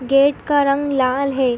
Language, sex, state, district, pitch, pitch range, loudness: Hindi, female, Uttar Pradesh, Hamirpur, 275 Hz, 260-285 Hz, -17 LUFS